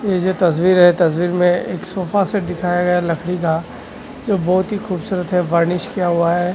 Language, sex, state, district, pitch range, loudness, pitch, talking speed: Hindi, male, Maharashtra, Washim, 175-185 Hz, -17 LUFS, 180 Hz, 200 wpm